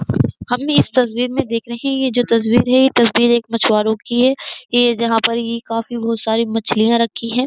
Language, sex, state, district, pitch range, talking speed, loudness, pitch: Hindi, female, Uttar Pradesh, Jyotiba Phule Nagar, 230-245 Hz, 225 wpm, -16 LUFS, 235 Hz